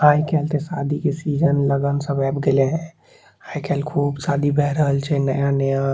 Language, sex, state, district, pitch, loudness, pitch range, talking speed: Maithili, male, Bihar, Saharsa, 145 Hz, -20 LUFS, 140-150 Hz, 190 wpm